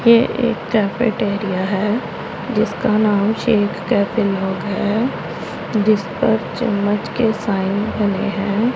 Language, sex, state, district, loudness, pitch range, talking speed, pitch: Hindi, female, Punjab, Pathankot, -18 LUFS, 200-225 Hz, 110 wpm, 210 Hz